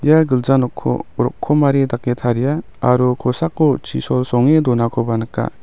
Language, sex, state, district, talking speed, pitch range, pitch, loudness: Garo, male, Meghalaya, West Garo Hills, 130 wpm, 120-145 Hz, 125 Hz, -17 LUFS